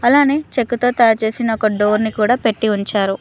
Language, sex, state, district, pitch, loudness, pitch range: Telugu, female, Telangana, Mahabubabad, 225 Hz, -16 LUFS, 215-245 Hz